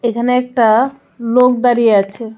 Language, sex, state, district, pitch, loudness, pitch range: Bengali, female, Tripura, West Tripura, 235 Hz, -13 LUFS, 230-250 Hz